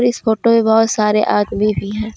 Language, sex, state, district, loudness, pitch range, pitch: Hindi, female, Jharkhand, Deoghar, -15 LUFS, 210-225 Hz, 220 Hz